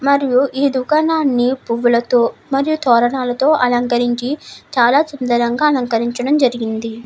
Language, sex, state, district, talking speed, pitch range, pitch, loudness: Telugu, female, Andhra Pradesh, Anantapur, 95 wpm, 240-280 Hz, 250 Hz, -16 LUFS